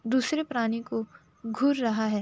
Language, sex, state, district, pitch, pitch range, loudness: Hindi, female, Uttar Pradesh, Jalaun, 230 Hz, 225-260 Hz, -28 LUFS